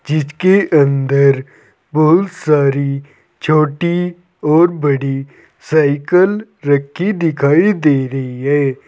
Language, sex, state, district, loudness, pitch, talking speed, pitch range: Hindi, male, Uttar Pradesh, Saharanpur, -14 LUFS, 150 Hz, 90 wpm, 140-175 Hz